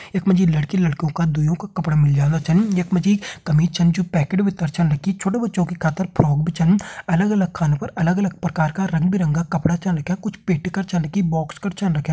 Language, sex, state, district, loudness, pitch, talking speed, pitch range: Garhwali, male, Uttarakhand, Uttarkashi, -20 LUFS, 175 Hz, 240 wpm, 160-190 Hz